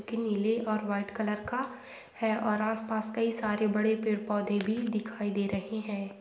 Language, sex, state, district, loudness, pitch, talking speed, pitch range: Hindi, female, Andhra Pradesh, Anantapur, -31 LUFS, 215 Hz, 185 wpm, 210-225 Hz